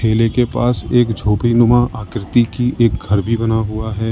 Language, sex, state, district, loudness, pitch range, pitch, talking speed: Hindi, male, Uttar Pradesh, Lalitpur, -16 LUFS, 110-120 Hz, 115 Hz, 205 wpm